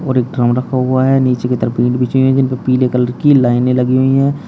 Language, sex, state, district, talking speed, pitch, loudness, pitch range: Hindi, male, Uttar Pradesh, Shamli, 280 wpm, 130 Hz, -13 LUFS, 125-130 Hz